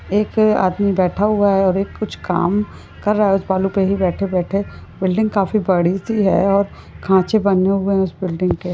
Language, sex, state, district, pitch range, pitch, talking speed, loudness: Hindi, female, Maharashtra, Nagpur, 185-205 Hz, 195 Hz, 210 wpm, -17 LUFS